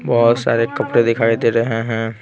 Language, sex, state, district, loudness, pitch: Hindi, male, Bihar, Patna, -16 LUFS, 115 Hz